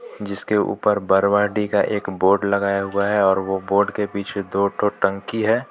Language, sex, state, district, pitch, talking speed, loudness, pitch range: Hindi, male, Jharkhand, Palamu, 100 Hz, 200 wpm, -20 LUFS, 100-105 Hz